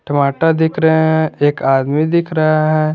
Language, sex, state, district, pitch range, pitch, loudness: Hindi, male, Jharkhand, Garhwa, 145-160 Hz, 155 Hz, -14 LUFS